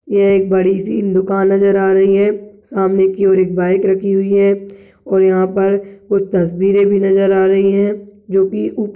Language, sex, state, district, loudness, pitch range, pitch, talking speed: Hindi, male, Rajasthan, Nagaur, -14 LUFS, 190-200 Hz, 195 Hz, 205 wpm